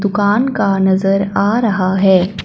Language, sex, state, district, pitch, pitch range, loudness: Hindi, female, Punjab, Fazilka, 195 Hz, 190-205 Hz, -14 LUFS